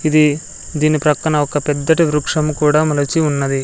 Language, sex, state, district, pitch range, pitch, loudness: Telugu, male, Andhra Pradesh, Sri Satya Sai, 145-155 Hz, 150 Hz, -16 LUFS